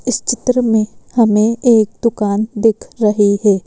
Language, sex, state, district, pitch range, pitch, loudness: Hindi, female, Madhya Pradesh, Bhopal, 210-235 Hz, 220 Hz, -14 LUFS